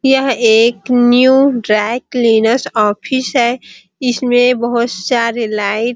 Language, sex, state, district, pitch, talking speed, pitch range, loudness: Hindi, female, Chhattisgarh, Bilaspur, 240 Hz, 120 wpm, 230-255 Hz, -13 LUFS